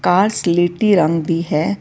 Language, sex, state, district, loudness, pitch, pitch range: Punjabi, female, Karnataka, Bangalore, -16 LUFS, 175 Hz, 165-200 Hz